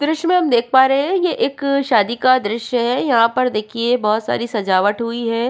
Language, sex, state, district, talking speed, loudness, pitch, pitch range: Hindi, female, Uttarakhand, Tehri Garhwal, 230 wpm, -17 LUFS, 240 Hz, 230-275 Hz